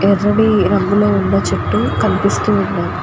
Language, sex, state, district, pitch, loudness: Telugu, female, Andhra Pradesh, Guntur, 195 Hz, -15 LUFS